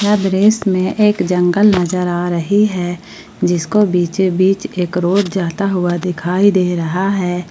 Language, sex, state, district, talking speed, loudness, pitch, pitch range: Hindi, female, Jharkhand, Palamu, 145 wpm, -15 LUFS, 185 Hz, 175-195 Hz